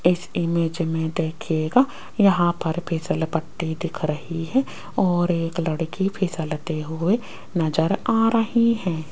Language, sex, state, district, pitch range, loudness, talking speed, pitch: Hindi, female, Rajasthan, Jaipur, 160-195 Hz, -23 LUFS, 130 wpm, 170 Hz